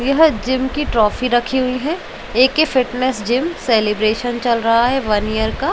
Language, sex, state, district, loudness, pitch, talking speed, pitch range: Hindi, female, Uttar Pradesh, Jalaun, -17 LUFS, 250 Hz, 180 wpm, 230-265 Hz